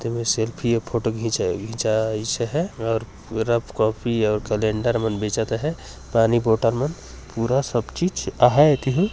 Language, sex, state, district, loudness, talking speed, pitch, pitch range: Chhattisgarhi, male, Chhattisgarh, Jashpur, -22 LUFS, 150 wpm, 115 Hz, 110-120 Hz